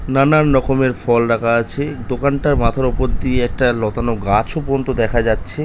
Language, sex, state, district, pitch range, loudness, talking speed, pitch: Bengali, male, West Bengal, North 24 Parganas, 115-135 Hz, -17 LUFS, 160 wpm, 125 Hz